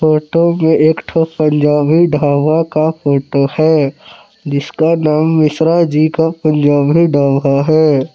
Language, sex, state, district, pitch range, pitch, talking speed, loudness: Hindi, male, Jharkhand, Palamu, 145-160 Hz, 155 Hz, 125 wpm, -12 LUFS